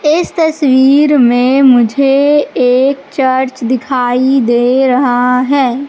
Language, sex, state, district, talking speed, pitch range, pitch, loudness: Hindi, female, Madhya Pradesh, Katni, 100 wpm, 250-280 Hz, 260 Hz, -10 LUFS